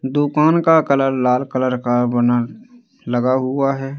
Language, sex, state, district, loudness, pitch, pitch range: Hindi, male, Madhya Pradesh, Katni, -17 LUFS, 135 Hz, 125-145 Hz